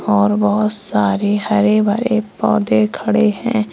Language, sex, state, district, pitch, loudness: Hindi, female, Uttar Pradesh, Saharanpur, 205 Hz, -16 LUFS